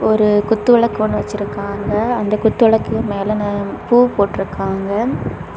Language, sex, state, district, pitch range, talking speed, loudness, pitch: Tamil, female, Tamil Nadu, Kanyakumari, 205-225 Hz, 95 wpm, -16 LUFS, 210 Hz